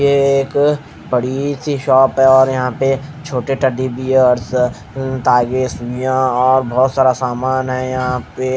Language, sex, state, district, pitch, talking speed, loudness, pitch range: Hindi, female, Odisha, Khordha, 130 Hz, 145 wpm, -15 LUFS, 125-135 Hz